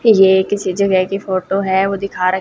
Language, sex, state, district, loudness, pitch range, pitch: Hindi, female, Haryana, Jhajjar, -15 LUFS, 190-200 Hz, 190 Hz